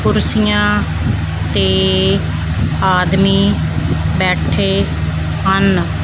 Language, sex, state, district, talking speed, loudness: Punjabi, female, Punjab, Fazilka, 50 wpm, -14 LUFS